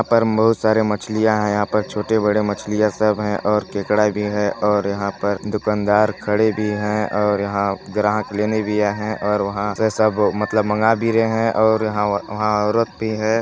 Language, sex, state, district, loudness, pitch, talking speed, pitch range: Hindi, male, Chhattisgarh, Balrampur, -19 LUFS, 105 Hz, 190 wpm, 105-110 Hz